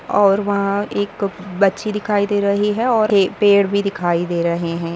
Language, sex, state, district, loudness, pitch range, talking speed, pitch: Hindi, female, Maharashtra, Sindhudurg, -17 LUFS, 190-205 Hz, 195 wpm, 200 Hz